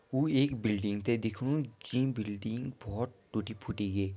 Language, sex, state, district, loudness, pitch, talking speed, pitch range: Garhwali, male, Uttarakhand, Tehri Garhwal, -34 LUFS, 110 Hz, 160 wpm, 105-130 Hz